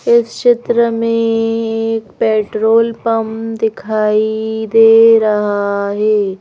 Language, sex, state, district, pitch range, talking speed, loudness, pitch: Hindi, female, Madhya Pradesh, Bhopal, 215-230 Hz, 105 wpm, -13 LUFS, 225 Hz